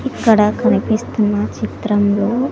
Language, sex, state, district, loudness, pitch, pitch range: Telugu, female, Andhra Pradesh, Sri Satya Sai, -16 LUFS, 210 Hz, 205-225 Hz